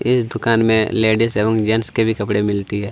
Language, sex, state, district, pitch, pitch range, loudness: Hindi, male, Chhattisgarh, Kabirdham, 110 Hz, 105-115 Hz, -17 LUFS